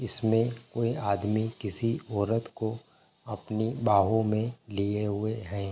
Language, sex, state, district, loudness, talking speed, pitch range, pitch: Hindi, male, Chhattisgarh, Bilaspur, -29 LUFS, 125 wpm, 105-115 Hz, 110 Hz